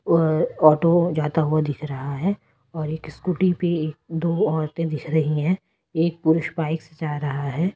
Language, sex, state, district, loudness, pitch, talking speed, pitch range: Hindi, female, Delhi, New Delhi, -23 LUFS, 160 Hz, 170 wpm, 155-170 Hz